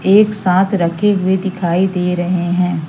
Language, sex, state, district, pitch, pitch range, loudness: Hindi, female, Madhya Pradesh, Katni, 185 Hz, 175-190 Hz, -15 LUFS